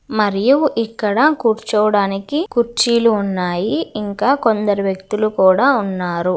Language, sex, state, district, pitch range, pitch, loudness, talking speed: Telugu, female, Andhra Pradesh, Visakhapatnam, 195-235 Hz, 215 Hz, -16 LUFS, 95 wpm